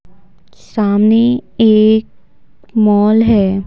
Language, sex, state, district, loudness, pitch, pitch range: Hindi, female, Bihar, Patna, -12 LUFS, 215 Hz, 210-225 Hz